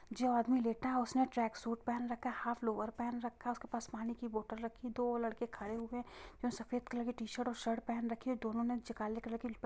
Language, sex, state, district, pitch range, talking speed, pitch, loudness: Hindi, female, Bihar, Sitamarhi, 230-245 Hz, 285 wpm, 235 Hz, -39 LUFS